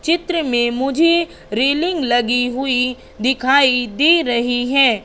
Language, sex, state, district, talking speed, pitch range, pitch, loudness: Hindi, female, Madhya Pradesh, Katni, 120 wpm, 245-310 Hz, 255 Hz, -16 LUFS